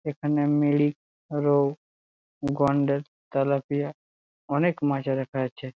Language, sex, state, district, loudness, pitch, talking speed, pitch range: Bengali, male, West Bengal, Jalpaiguri, -26 LUFS, 140 Hz, 95 wpm, 135-145 Hz